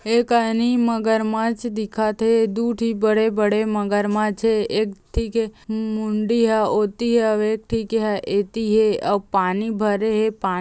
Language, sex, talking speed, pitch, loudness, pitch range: Chhattisgarhi, female, 170 wpm, 220 Hz, -20 LUFS, 210-225 Hz